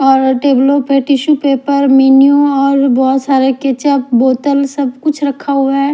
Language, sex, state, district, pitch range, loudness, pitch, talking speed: Hindi, female, Punjab, Fazilka, 265-280 Hz, -11 LUFS, 275 Hz, 160 wpm